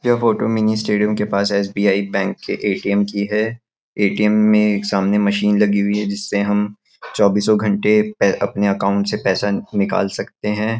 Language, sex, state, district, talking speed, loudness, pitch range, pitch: Hindi, male, Chhattisgarh, Raigarh, 180 wpm, -18 LUFS, 100-105 Hz, 105 Hz